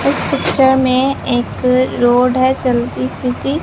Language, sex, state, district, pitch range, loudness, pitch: Hindi, male, Bihar, Katihar, 245-265 Hz, -14 LUFS, 255 Hz